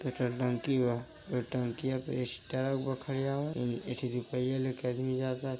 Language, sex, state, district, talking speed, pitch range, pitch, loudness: Hindi, male, Uttar Pradesh, Gorakhpur, 95 wpm, 125-130 Hz, 130 Hz, -34 LUFS